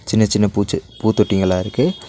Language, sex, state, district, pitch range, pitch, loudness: Tamil, male, Tamil Nadu, Nilgiris, 95-110 Hz, 105 Hz, -18 LUFS